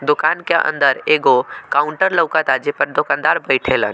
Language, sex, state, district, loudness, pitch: Bhojpuri, male, Bihar, Muzaffarpur, -16 LUFS, 180 Hz